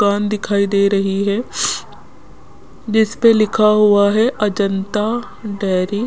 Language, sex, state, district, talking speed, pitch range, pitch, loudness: Hindi, female, Rajasthan, Jaipur, 120 wpm, 200-215 Hz, 210 Hz, -16 LUFS